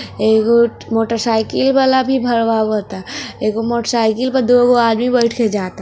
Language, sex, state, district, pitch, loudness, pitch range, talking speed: Hindi, female, Bihar, East Champaran, 230 Hz, -15 LUFS, 220-245 Hz, 145 wpm